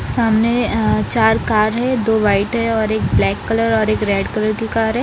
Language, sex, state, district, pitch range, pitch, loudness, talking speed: Hindi, female, Bihar, Patna, 215-225 Hz, 220 Hz, -16 LUFS, 240 wpm